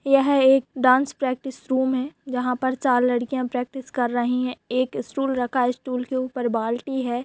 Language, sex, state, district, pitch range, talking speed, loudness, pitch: Hindi, female, Bihar, Jahanabad, 250-265 Hz, 190 wpm, -23 LUFS, 255 Hz